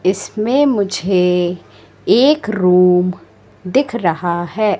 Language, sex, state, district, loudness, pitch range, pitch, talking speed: Hindi, female, Madhya Pradesh, Katni, -15 LUFS, 175-215 Hz, 185 Hz, 85 wpm